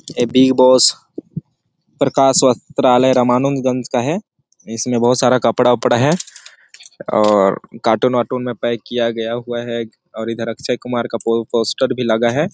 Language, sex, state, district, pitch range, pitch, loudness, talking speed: Hindi, male, Chhattisgarh, Sarguja, 115-130 Hz, 120 Hz, -16 LUFS, 145 wpm